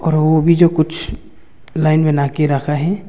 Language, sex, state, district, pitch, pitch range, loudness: Hindi, male, Arunachal Pradesh, Longding, 155 Hz, 140-165 Hz, -15 LUFS